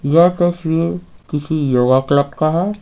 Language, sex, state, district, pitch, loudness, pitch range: Hindi, male, Bihar, Patna, 150 Hz, -16 LUFS, 135-170 Hz